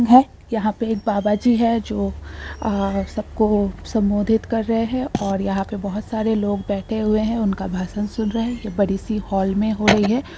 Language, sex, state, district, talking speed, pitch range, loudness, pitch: Hindi, female, Bihar, Purnia, 190 wpm, 200-225 Hz, -21 LUFS, 215 Hz